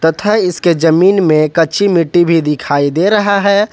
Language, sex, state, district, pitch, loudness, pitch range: Hindi, male, Jharkhand, Ranchi, 170 Hz, -11 LUFS, 160-200 Hz